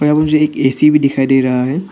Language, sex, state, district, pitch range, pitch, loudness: Hindi, male, Arunachal Pradesh, Papum Pare, 135-150 Hz, 140 Hz, -13 LUFS